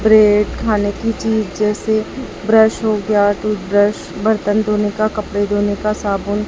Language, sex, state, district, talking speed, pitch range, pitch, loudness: Hindi, male, Chhattisgarh, Raipur, 150 wpm, 205-215 Hz, 210 Hz, -16 LUFS